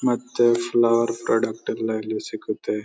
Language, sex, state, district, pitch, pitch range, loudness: Kannada, male, Karnataka, Bellary, 115 Hz, 110-120 Hz, -23 LUFS